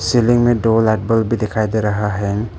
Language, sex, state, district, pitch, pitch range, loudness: Hindi, male, Arunachal Pradesh, Papum Pare, 110 Hz, 105-115 Hz, -16 LUFS